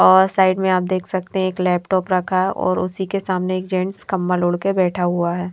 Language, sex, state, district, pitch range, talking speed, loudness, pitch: Hindi, female, Maharashtra, Mumbai Suburban, 180-190 Hz, 250 wpm, -19 LUFS, 185 Hz